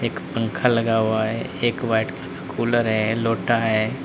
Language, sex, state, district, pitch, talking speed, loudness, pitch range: Hindi, male, Uttar Pradesh, Lalitpur, 115 Hz, 190 wpm, -22 LUFS, 110-120 Hz